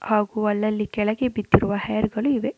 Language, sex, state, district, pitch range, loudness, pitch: Kannada, female, Karnataka, Raichur, 210-220 Hz, -23 LUFS, 215 Hz